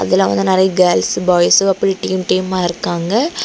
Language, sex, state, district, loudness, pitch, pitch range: Tamil, female, Tamil Nadu, Kanyakumari, -14 LUFS, 185 Hz, 175-190 Hz